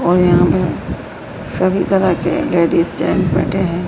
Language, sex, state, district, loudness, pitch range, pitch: Hindi, female, Madhya Pradesh, Dhar, -15 LUFS, 170-185 Hz, 175 Hz